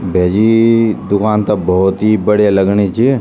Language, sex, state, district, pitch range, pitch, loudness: Garhwali, male, Uttarakhand, Tehri Garhwal, 95-110 Hz, 105 Hz, -12 LUFS